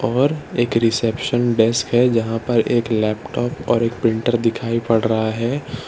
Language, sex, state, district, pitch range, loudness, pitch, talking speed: Hindi, male, Gujarat, Valsad, 115-120 Hz, -19 LUFS, 115 Hz, 165 wpm